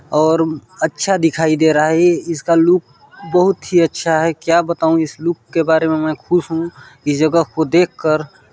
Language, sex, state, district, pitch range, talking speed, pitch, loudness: Hindi, male, Chhattisgarh, Balrampur, 155-170 Hz, 190 wpm, 160 Hz, -16 LUFS